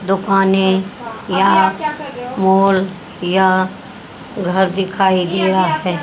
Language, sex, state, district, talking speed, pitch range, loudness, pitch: Hindi, female, Haryana, Jhajjar, 80 wpm, 185-195 Hz, -15 LUFS, 190 Hz